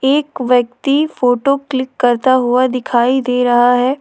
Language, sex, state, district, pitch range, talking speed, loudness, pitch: Hindi, female, Jharkhand, Ranchi, 245-270 Hz, 150 wpm, -14 LUFS, 255 Hz